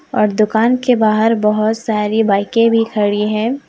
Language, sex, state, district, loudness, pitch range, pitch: Hindi, female, Jharkhand, Deoghar, -14 LUFS, 210-230 Hz, 220 Hz